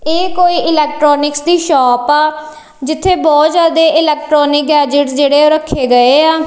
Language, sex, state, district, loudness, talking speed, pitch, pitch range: Punjabi, female, Punjab, Kapurthala, -11 LUFS, 140 wpm, 305 Hz, 290-320 Hz